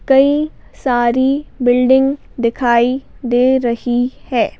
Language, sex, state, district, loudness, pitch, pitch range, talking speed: Hindi, female, Madhya Pradesh, Bhopal, -15 LUFS, 255 Hz, 240-270 Hz, 90 wpm